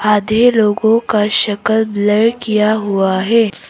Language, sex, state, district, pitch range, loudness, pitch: Hindi, female, Arunachal Pradesh, Papum Pare, 210-220 Hz, -13 LUFS, 215 Hz